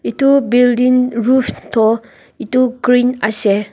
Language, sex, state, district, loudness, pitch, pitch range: Nagamese, female, Nagaland, Dimapur, -14 LUFS, 245 Hz, 225-255 Hz